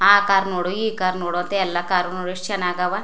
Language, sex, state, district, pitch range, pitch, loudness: Kannada, female, Karnataka, Chamarajanagar, 180-195 Hz, 185 Hz, -21 LUFS